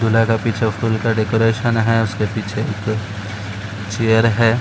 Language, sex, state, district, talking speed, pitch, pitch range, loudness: Hindi, male, Uttar Pradesh, Etah, 170 wpm, 110 Hz, 105-115 Hz, -18 LUFS